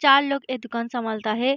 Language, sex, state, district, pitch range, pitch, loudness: Hindi, female, Bihar, Araria, 235-275 Hz, 250 Hz, -24 LUFS